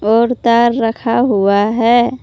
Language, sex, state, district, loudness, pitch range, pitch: Hindi, female, Jharkhand, Palamu, -13 LUFS, 225-240 Hz, 235 Hz